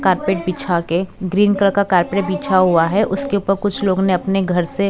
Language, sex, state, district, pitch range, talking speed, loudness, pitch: Hindi, female, Chhattisgarh, Raipur, 180-200 Hz, 220 wpm, -17 LUFS, 195 Hz